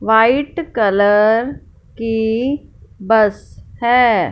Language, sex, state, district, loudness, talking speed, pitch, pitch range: Hindi, female, Punjab, Fazilka, -15 LUFS, 70 wpm, 225 Hz, 215-245 Hz